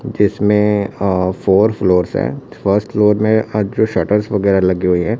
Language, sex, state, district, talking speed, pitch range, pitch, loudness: Hindi, male, Chhattisgarh, Raipur, 160 wpm, 95-105 Hz, 105 Hz, -15 LUFS